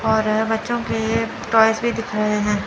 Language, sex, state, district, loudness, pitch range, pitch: Hindi, male, Chandigarh, Chandigarh, -20 LUFS, 215-230 Hz, 220 Hz